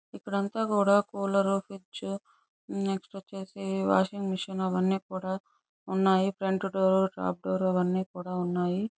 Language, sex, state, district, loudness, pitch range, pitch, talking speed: Telugu, male, Andhra Pradesh, Chittoor, -29 LUFS, 185-195 Hz, 190 Hz, 120 wpm